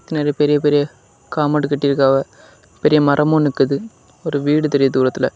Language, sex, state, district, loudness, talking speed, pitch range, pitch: Tamil, male, Tamil Nadu, Kanyakumari, -17 LUFS, 145 wpm, 135-150 Hz, 145 Hz